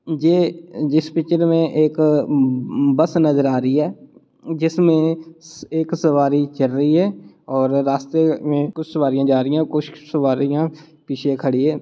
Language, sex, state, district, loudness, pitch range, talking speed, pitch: Hindi, male, Bihar, Muzaffarpur, -18 LUFS, 140-160 Hz, 150 wpm, 155 Hz